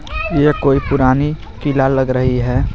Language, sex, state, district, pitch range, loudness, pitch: Hindi, male, Jharkhand, Garhwa, 130-145 Hz, -15 LUFS, 135 Hz